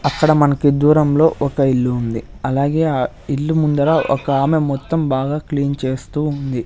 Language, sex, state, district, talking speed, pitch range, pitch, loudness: Telugu, male, Andhra Pradesh, Sri Satya Sai, 155 wpm, 135-150 Hz, 140 Hz, -17 LUFS